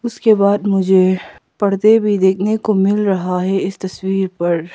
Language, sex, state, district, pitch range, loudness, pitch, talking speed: Hindi, female, Arunachal Pradesh, Papum Pare, 190-205 Hz, -15 LUFS, 195 Hz, 165 wpm